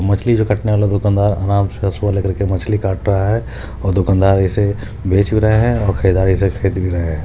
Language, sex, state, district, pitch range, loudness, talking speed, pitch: Maithili, male, Bihar, Supaul, 95-105 Hz, -16 LUFS, 230 wpm, 100 Hz